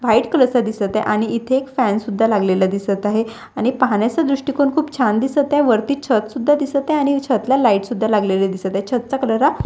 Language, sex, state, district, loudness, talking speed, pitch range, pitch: Marathi, female, Maharashtra, Washim, -18 LUFS, 215 wpm, 210-275 Hz, 235 Hz